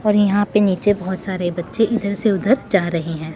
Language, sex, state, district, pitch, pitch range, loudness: Hindi, female, Chandigarh, Chandigarh, 200 Hz, 180-210 Hz, -19 LUFS